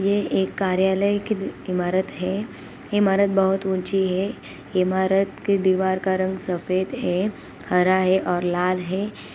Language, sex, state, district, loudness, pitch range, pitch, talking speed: Hindi, female, Bihar, Gopalganj, -22 LUFS, 185-195 Hz, 190 Hz, 140 wpm